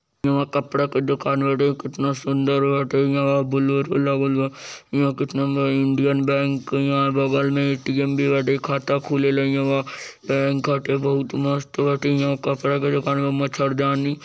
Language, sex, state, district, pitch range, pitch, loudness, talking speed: Bhojpuri, male, Bihar, East Champaran, 135-140 Hz, 140 Hz, -21 LUFS, 160 wpm